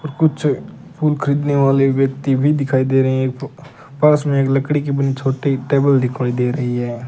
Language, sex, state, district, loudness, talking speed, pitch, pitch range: Hindi, male, Rajasthan, Bikaner, -17 LUFS, 205 wpm, 135 Hz, 130-145 Hz